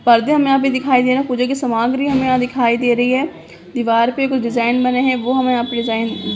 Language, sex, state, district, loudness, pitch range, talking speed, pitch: Hindi, female, Bihar, Jamui, -16 LUFS, 235-265 Hz, 275 wpm, 250 Hz